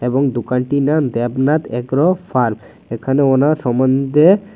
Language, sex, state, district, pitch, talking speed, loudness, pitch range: Bengali, male, Tripura, West Tripura, 135 Hz, 120 wpm, -16 LUFS, 120-145 Hz